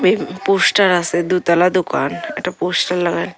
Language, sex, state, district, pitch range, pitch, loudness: Bengali, female, Tripura, Unakoti, 175-185 Hz, 180 Hz, -16 LUFS